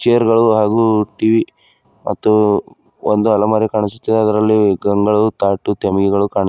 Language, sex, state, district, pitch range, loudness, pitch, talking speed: Kannada, male, Karnataka, Bidar, 100-110 Hz, -15 LUFS, 105 Hz, 130 wpm